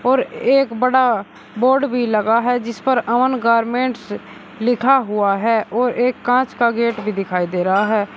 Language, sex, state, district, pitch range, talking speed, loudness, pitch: Hindi, male, Uttar Pradesh, Shamli, 215-250 Hz, 175 wpm, -17 LUFS, 235 Hz